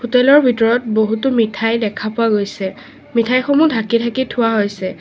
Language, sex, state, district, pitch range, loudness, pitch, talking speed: Assamese, female, Assam, Sonitpur, 220-255 Hz, -16 LUFS, 230 Hz, 170 wpm